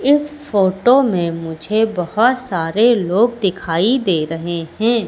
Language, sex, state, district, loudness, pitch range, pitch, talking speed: Hindi, female, Madhya Pradesh, Katni, -16 LUFS, 170-240 Hz, 205 Hz, 130 wpm